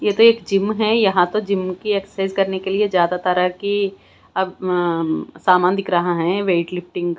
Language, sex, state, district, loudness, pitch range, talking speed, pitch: Hindi, female, Bihar, West Champaran, -19 LUFS, 180-200 Hz, 210 wpm, 190 Hz